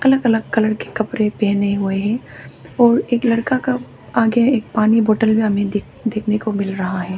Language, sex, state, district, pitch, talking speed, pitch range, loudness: Hindi, female, Arunachal Pradesh, Papum Pare, 220 Hz, 190 wpm, 205-235 Hz, -18 LUFS